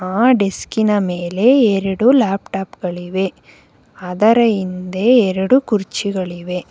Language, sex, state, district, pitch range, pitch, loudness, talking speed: Kannada, female, Karnataka, Bangalore, 185-225 Hz, 195 Hz, -16 LUFS, 80 wpm